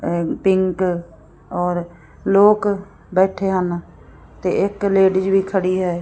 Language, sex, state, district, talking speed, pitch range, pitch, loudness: Punjabi, female, Punjab, Fazilka, 110 wpm, 175-195 Hz, 185 Hz, -19 LUFS